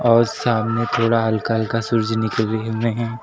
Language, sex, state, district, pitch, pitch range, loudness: Hindi, male, Uttar Pradesh, Lucknow, 115 Hz, 110-115 Hz, -20 LUFS